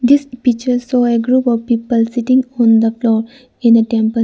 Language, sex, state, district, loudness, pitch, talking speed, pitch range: English, female, Arunachal Pradesh, Lower Dibang Valley, -14 LUFS, 240 Hz, 200 wpm, 230-250 Hz